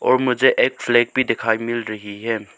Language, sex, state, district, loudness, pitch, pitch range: Hindi, male, Arunachal Pradesh, Lower Dibang Valley, -19 LUFS, 115 Hz, 110-120 Hz